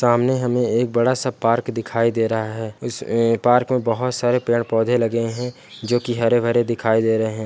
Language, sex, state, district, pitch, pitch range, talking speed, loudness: Hindi, male, Bihar, Jamui, 115 Hz, 115-125 Hz, 195 wpm, -20 LUFS